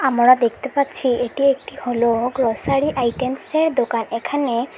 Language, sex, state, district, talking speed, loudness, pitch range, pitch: Bengali, female, Assam, Hailakandi, 125 wpm, -19 LUFS, 235-275 Hz, 255 Hz